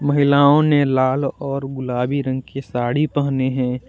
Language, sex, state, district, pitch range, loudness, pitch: Hindi, male, Jharkhand, Deoghar, 130-145 Hz, -18 LUFS, 135 Hz